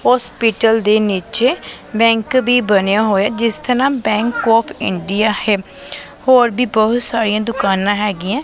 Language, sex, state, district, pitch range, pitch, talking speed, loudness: Punjabi, female, Punjab, Pathankot, 210-245 Hz, 225 Hz, 140 wpm, -15 LUFS